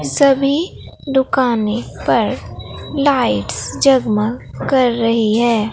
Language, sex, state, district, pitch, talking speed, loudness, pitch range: Hindi, female, Bihar, Katihar, 240 Hz, 85 wpm, -16 LUFS, 220-270 Hz